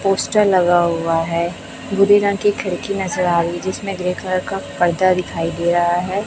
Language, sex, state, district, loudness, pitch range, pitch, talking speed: Hindi, male, Chhattisgarh, Raipur, -18 LUFS, 175-195 Hz, 180 Hz, 200 wpm